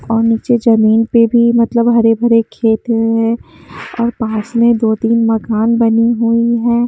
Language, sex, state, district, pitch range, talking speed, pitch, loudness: Hindi, female, Haryana, Jhajjar, 225-235 Hz, 155 wpm, 230 Hz, -13 LUFS